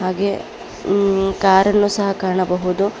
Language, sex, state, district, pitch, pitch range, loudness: Kannada, female, Karnataka, Bangalore, 195 Hz, 185-200 Hz, -17 LUFS